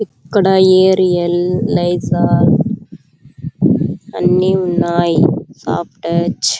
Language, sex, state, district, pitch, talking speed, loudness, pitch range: Telugu, female, Andhra Pradesh, Chittoor, 180 Hz, 75 wpm, -14 LUFS, 170-190 Hz